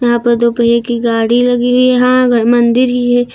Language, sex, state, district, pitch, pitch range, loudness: Hindi, female, Uttar Pradesh, Lucknow, 240 Hz, 235-245 Hz, -11 LUFS